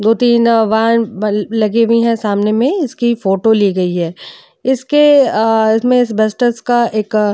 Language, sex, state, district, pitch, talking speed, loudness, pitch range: Hindi, female, Uttar Pradesh, Jyotiba Phule Nagar, 225 Hz, 165 wpm, -13 LUFS, 210-240 Hz